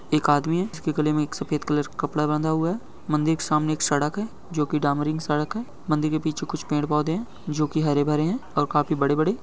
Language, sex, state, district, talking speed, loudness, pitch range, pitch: Hindi, male, Bihar, Begusarai, 240 wpm, -24 LUFS, 150-160 Hz, 150 Hz